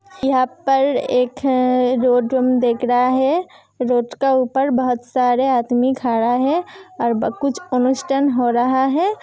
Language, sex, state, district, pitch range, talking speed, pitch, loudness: Hindi, female, Uttar Pradesh, Hamirpur, 245-270 Hz, 150 wpm, 255 Hz, -18 LUFS